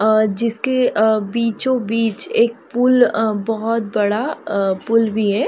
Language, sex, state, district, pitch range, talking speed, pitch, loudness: Hindi, female, Bihar, Saran, 215-235 Hz, 155 wpm, 225 Hz, -17 LUFS